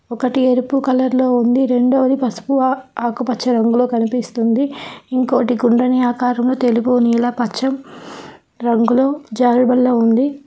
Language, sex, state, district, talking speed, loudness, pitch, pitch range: Telugu, female, Telangana, Hyderabad, 110 wpm, -16 LUFS, 250 Hz, 240-260 Hz